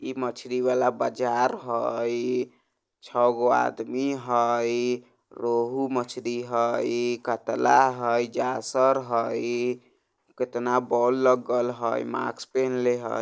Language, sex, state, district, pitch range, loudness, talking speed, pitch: Bajjika, male, Bihar, Vaishali, 120-125 Hz, -25 LUFS, 105 wpm, 120 Hz